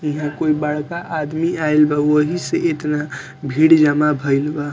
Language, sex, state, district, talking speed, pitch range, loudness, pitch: Bhojpuri, male, Bihar, Muzaffarpur, 165 wpm, 150-155 Hz, -17 LUFS, 150 Hz